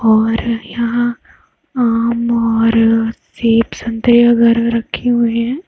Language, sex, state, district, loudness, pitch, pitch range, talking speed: Hindi, female, Bihar, Saran, -14 LUFS, 235 Hz, 230-240 Hz, 105 wpm